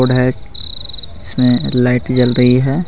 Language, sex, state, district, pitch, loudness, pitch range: Hindi, male, Jharkhand, Garhwa, 125 Hz, -15 LUFS, 95-125 Hz